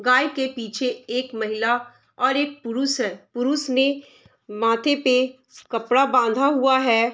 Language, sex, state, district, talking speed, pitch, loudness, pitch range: Hindi, female, Bihar, Saharsa, 145 wpm, 255 Hz, -22 LUFS, 235-270 Hz